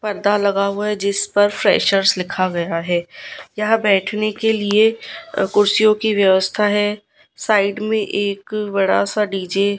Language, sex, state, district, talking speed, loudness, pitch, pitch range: Hindi, female, Gujarat, Gandhinagar, 155 wpm, -17 LUFS, 205 Hz, 195-210 Hz